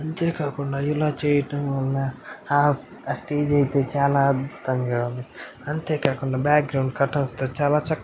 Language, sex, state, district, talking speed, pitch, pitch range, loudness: Telugu, male, Andhra Pradesh, Anantapur, 125 wpm, 140 Hz, 135-145 Hz, -23 LUFS